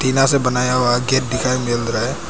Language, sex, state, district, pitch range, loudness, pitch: Hindi, male, Arunachal Pradesh, Papum Pare, 120-130 Hz, -17 LUFS, 125 Hz